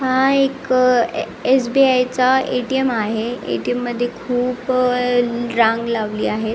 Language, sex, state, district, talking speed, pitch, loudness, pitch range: Marathi, female, Maharashtra, Nagpur, 135 wpm, 250 Hz, -18 LUFS, 240-260 Hz